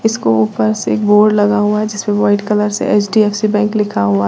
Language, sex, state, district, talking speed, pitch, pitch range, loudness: Hindi, female, Uttar Pradesh, Lalitpur, 225 wpm, 210 Hz, 205-210 Hz, -13 LUFS